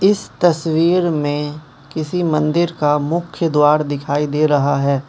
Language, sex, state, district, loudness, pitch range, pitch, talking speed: Hindi, male, Manipur, Imphal West, -17 LUFS, 145-170 Hz, 150 Hz, 140 wpm